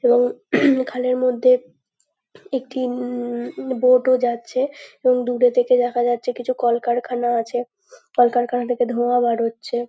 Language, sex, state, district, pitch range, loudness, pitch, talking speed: Bengali, female, West Bengal, North 24 Parganas, 240-255 Hz, -20 LUFS, 245 Hz, 125 wpm